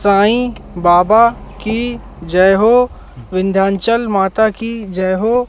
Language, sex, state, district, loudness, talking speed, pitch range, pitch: Hindi, male, Madhya Pradesh, Katni, -14 LUFS, 110 wpm, 190-230 Hz, 210 Hz